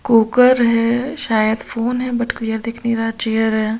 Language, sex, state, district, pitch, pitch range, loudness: Hindi, female, Bihar, Katihar, 230 Hz, 225-240 Hz, -17 LUFS